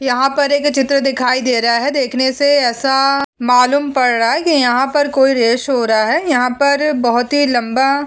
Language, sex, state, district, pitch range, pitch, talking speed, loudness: Hindi, female, Uttar Pradesh, Etah, 245-285 Hz, 270 Hz, 210 wpm, -14 LUFS